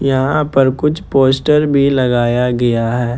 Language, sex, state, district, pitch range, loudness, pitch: Hindi, male, Jharkhand, Ranchi, 120-140 Hz, -14 LUFS, 135 Hz